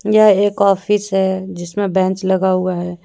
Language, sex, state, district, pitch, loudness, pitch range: Hindi, female, Jharkhand, Deoghar, 190 Hz, -16 LUFS, 185-205 Hz